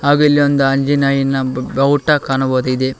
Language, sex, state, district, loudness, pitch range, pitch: Kannada, male, Karnataka, Koppal, -15 LUFS, 135-145 Hz, 135 Hz